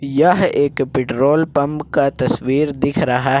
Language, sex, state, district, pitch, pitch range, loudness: Hindi, male, Jharkhand, Ranchi, 140 Hz, 135-150 Hz, -17 LUFS